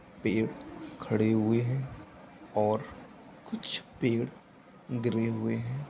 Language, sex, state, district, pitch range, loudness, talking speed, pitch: Hindi, male, Uttar Pradesh, Etah, 110-130 Hz, -31 LUFS, 100 wpm, 115 Hz